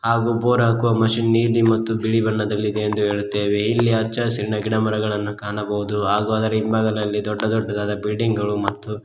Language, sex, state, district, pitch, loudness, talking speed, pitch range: Kannada, male, Karnataka, Koppal, 110 Hz, -20 LUFS, 170 wpm, 105-115 Hz